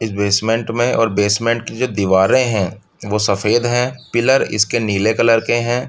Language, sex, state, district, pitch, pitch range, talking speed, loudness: Hindi, male, Uttar Pradesh, Budaun, 115 Hz, 105-120 Hz, 185 wpm, -16 LUFS